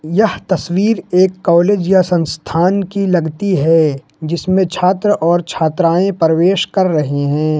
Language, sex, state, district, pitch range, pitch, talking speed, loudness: Hindi, male, Jharkhand, Ranchi, 160-190 Hz, 175 Hz, 135 wpm, -14 LUFS